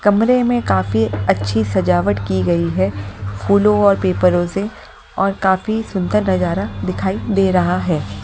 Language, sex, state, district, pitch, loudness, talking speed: Hindi, female, Delhi, New Delhi, 175 Hz, -17 LUFS, 145 wpm